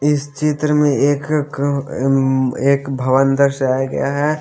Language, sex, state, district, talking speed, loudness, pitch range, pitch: Hindi, male, Haryana, Jhajjar, 165 wpm, -17 LUFS, 135-145 Hz, 140 Hz